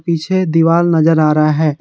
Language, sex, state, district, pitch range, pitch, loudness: Hindi, male, Jharkhand, Garhwa, 155-170 Hz, 165 Hz, -13 LUFS